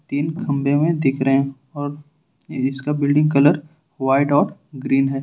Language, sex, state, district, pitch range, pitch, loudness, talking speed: Hindi, male, Jharkhand, Ranchi, 135-150 Hz, 145 Hz, -19 LUFS, 150 wpm